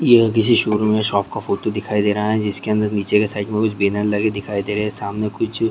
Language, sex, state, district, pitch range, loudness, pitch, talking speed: Hindi, male, Bihar, Sitamarhi, 105-110 Hz, -19 LUFS, 105 Hz, 285 wpm